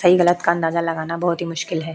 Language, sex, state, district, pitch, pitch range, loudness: Hindi, female, Maharashtra, Chandrapur, 170 Hz, 165-175 Hz, -20 LUFS